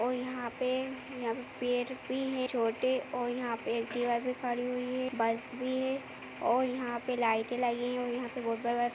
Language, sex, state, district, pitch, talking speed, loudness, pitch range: Hindi, female, Uttar Pradesh, Jyotiba Phule Nagar, 245 Hz, 180 wpm, -33 LUFS, 240-255 Hz